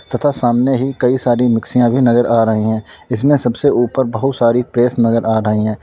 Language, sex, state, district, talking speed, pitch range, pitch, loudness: Hindi, male, Uttar Pradesh, Lalitpur, 215 wpm, 115-130 Hz, 120 Hz, -14 LUFS